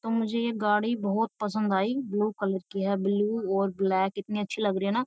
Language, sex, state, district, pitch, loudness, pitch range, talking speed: Hindi, female, Uttar Pradesh, Jyotiba Phule Nagar, 205 Hz, -28 LUFS, 195-220 Hz, 250 wpm